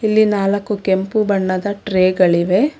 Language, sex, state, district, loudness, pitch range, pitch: Kannada, female, Karnataka, Bangalore, -16 LUFS, 185-210 Hz, 200 Hz